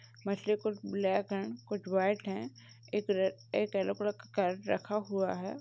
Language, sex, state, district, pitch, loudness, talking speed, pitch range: Hindi, female, Uttar Pradesh, Jalaun, 195 Hz, -34 LUFS, 170 wpm, 185-205 Hz